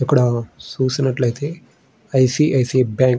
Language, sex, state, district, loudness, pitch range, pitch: Telugu, male, Andhra Pradesh, Srikakulam, -18 LUFS, 125-135 Hz, 130 Hz